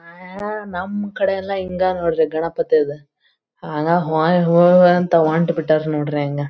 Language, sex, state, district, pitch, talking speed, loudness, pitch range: Kannada, female, Karnataka, Belgaum, 170 Hz, 110 wpm, -18 LUFS, 155-185 Hz